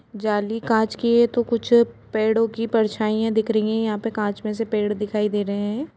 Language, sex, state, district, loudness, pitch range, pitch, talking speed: Hindi, female, Uttar Pradesh, Jalaun, -22 LUFS, 210-230 Hz, 220 Hz, 220 wpm